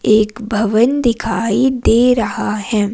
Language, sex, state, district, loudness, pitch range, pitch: Hindi, female, Himachal Pradesh, Shimla, -15 LUFS, 215-240 Hz, 225 Hz